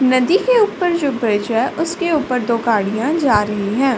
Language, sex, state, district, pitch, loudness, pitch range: Hindi, female, Uttar Pradesh, Ghazipur, 260 Hz, -17 LUFS, 230-330 Hz